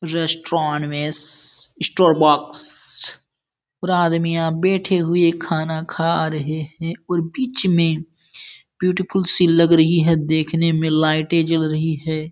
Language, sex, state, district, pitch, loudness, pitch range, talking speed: Hindi, male, Bihar, Jamui, 165 Hz, -17 LUFS, 155-170 Hz, 130 wpm